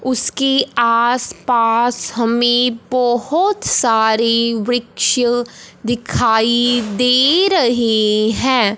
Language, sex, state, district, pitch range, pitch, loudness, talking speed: Hindi, male, Punjab, Fazilka, 230-250 Hz, 240 Hz, -15 LUFS, 70 wpm